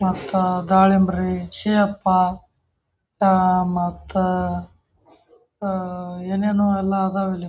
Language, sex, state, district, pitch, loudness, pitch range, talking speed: Kannada, male, Karnataka, Bijapur, 185 Hz, -20 LUFS, 180-195 Hz, 105 wpm